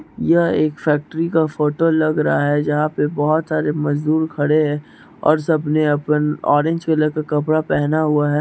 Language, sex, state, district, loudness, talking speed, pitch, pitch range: Hindi, male, Chhattisgarh, Raigarh, -18 LUFS, 180 wpm, 155 Hz, 150-155 Hz